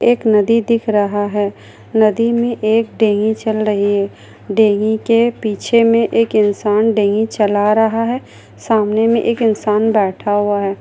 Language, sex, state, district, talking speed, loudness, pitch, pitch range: Hindi, female, Bihar, Kishanganj, 160 wpm, -15 LUFS, 220 Hz, 205-230 Hz